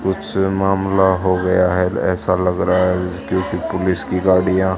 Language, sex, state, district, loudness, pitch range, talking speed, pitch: Hindi, female, Haryana, Charkhi Dadri, -17 LUFS, 90-95 Hz, 165 wpm, 95 Hz